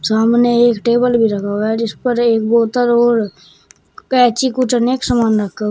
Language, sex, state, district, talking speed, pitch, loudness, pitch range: Hindi, female, Uttar Pradesh, Shamli, 200 wpm, 235 Hz, -14 LUFS, 220-245 Hz